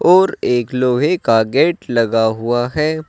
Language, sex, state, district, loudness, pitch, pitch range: Hindi, male, Uttar Pradesh, Saharanpur, -16 LUFS, 125 Hz, 115-160 Hz